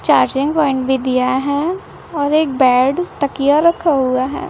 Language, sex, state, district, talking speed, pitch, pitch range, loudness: Hindi, female, Chhattisgarh, Raipur, 160 wpm, 285 Hz, 260-310 Hz, -15 LUFS